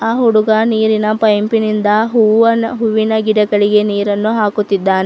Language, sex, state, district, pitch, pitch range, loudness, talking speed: Kannada, female, Karnataka, Bidar, 215 Hz, 210-225 Hz, -13 LUFS, 105 wpm